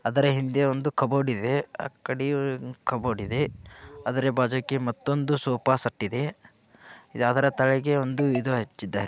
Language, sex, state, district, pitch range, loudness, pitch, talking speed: Kannada, male, Karnataka, Dharwad, 125-140 Hz, -26 LUFS, 130 Hz, 65 wpm